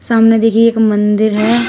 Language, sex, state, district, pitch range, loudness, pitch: Hindi, female, Uttar Pradesh, Shamli, 215-230 Hz, -11 LUFS, 225 Hz